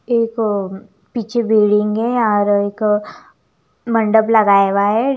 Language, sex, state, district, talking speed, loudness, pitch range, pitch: Hindi, female, Chandigarh, Chandigarh, 140 wpm, -15 LUFS, 205-230 Hz, 215 Hz